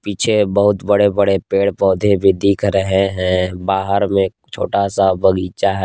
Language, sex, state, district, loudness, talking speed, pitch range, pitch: Hindi, male, Jharkhand, Palamu, -16 LUFS, 175 wpm, 95-100 Hz, 100 Hz